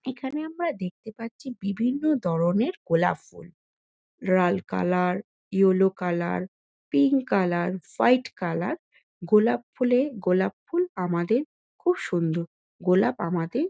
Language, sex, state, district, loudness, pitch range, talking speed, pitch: Bengali, female, West Bengal, Kolkata, -25 LUFS, 180-260 Hz, 115 wpm, 210 Hz